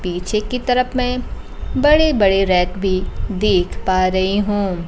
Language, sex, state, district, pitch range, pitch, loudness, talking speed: Hindi, female, Bihar, Kaimur, 185-250 Hz, 200 Hz, -17 LUFS, 150 wpm